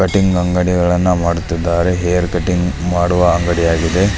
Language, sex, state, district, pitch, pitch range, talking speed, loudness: Kannada, male, Karnataka, Belgaum, 90 Hz, 85-90 Hz, 115 wpm, -15 LUFS